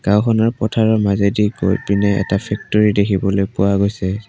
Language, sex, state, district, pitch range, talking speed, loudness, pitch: Assamese, male, Assam, Kamrup Metropolitan, 100-105 Hz, 140 wpm, -16 LUFS, 100 Hz